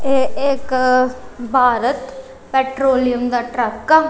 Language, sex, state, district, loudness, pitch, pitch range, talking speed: Punjabi, female, Punjab, Kapurthala, -17 LUFS, 260 Hz, 245-270 Hz, 100 wpm